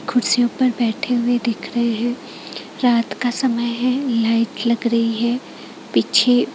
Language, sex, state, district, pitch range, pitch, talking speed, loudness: Hindi, female, Chhattisgarh, Raipur, 235-245 Hz, 240 Hz, 145 wpm, -19 LUFS